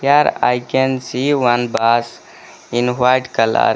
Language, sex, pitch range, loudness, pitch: English, male, 120-130 Hz, -16 LUFS, 125 Hz